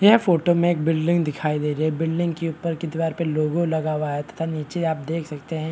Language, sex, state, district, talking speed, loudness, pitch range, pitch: Hindi, male, Bihar, Kishanganj, 305 wpm, -23 LUFS, 155-170 Hz, 160 Hz